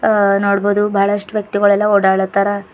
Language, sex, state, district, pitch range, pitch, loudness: Kannada, female, Karnataka, Bidar, 200-205 Hz, 200 Hz, -15 LUFS